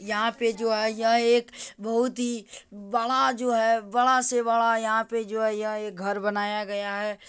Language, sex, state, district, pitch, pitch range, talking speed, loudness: Maithili, male, Bihar, Madhepura, 225 Hz, 210-235 Hz, 195 wpm, -25 LUFS